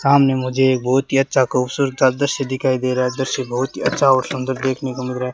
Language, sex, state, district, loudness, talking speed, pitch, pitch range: Hindi, male, Rajasthan, Bikaner, -18 LUFS, 270 wpm, 130 Hz, 130-135 Hz